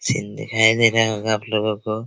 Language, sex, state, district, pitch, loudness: Hindi, male, Bihar, Araria, 110 Hz, -19 LUFS